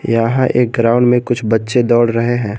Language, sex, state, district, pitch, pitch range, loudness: Hindi, male, Jharkhand, Garhwa, 120 Hz, 115-120 Hz, -14 LUFS